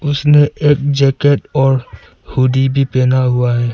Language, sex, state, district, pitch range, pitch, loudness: Hindi, male, Arunachal Pradesh, Papum Pare, 130-145 Hz, 135 Hz, -13 LUFS